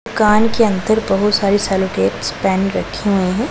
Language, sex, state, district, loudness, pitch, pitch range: Hindi, female, Punjab, Pathankot, -16 LUFS, 200 Hz, 190-220 Hz